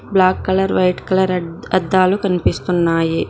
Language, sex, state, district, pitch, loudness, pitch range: Telugu, female, Telangana, Mahabubabad, 185 Hz, -17 LUFS, 175-190 Hz